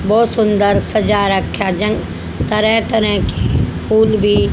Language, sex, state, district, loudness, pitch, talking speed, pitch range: Hindi, female, Haryana, Jhajjar, -15 LUFS, 215 Hz, 130 wpm, 205-220 Hz